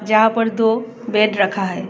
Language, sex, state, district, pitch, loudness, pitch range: Hindi, female, Tripura, West Tripura, 220 Hz, -17 LUFS, 205-225 Hz